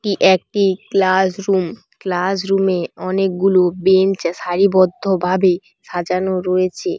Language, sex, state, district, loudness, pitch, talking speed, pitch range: Bengali, female, West Bengal, Dakshin Dinajpur, -17 LUFS, 190 Hz, 95 wpm, 180-195 Hz